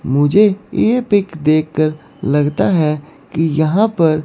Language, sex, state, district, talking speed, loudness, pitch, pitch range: Hindi, female, Chandigarh, Chandigarh, 125 wpm, -15 LUFS, 155 Hz, 150-195 Hz